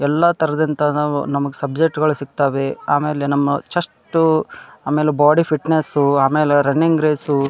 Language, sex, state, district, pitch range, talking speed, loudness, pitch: Kannada, male, Karnataka, Dharwad, 140-155 Hz, 135 wpm, -17 LUFS, 150 Hz